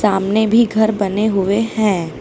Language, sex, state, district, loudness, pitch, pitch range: Hindi, female, Uttar Pradesh, Lucknow, -16 LUFS, 210 Hz, 200-220 Hz